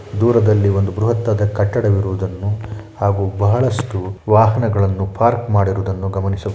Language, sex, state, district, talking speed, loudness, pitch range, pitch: Kannada, male, Karnataka, Shimoga, 100 wpm, -17 LUFS, 100-110 Hz, 100 Hz